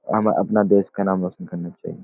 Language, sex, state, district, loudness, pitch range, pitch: Hindi, male, Uttarakhand, Uttarkashi, -21 LUFS, 90-100 Hz, 95 Hz